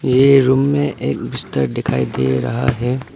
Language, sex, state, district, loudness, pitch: Hindi, male, Arunachal Pradesh, Papum Pare, -17 LUFS, 125 Hz